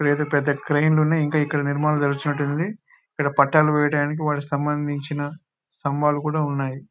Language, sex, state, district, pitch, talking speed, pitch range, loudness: Telugu, male, Telangana, Nalgonda, 145 Hz, 145 wpm, 145-150 Hz, -22 LUFS